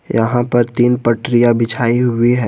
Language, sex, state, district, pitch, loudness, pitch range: Hindi, male, Jharkhand, Garhwa, 120 Hz, -14 LUFS, 115-120 Hz